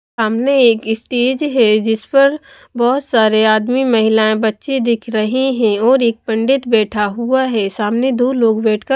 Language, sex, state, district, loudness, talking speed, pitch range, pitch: Hindi, female, Chhattisgarh, Raipur, -14 LUFS, 160 wpm, 220-260 Hz, 230 Hz